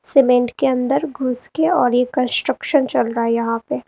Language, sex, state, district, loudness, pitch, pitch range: Hindi, female, Uttar Pradesh, Lalitpur, -18 LUFS, 250 Hz, 240-275 Hz